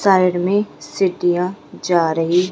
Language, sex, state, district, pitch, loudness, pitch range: Hindi, female, Rajasthan, Jaipur, 180 Hz, -18 LUFS, 175-190 Hz